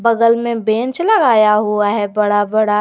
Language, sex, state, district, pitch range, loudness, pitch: Hindi, female, Jharkhand, Garhwa, 210-230 Hz, -14 LUFS, 220 Hz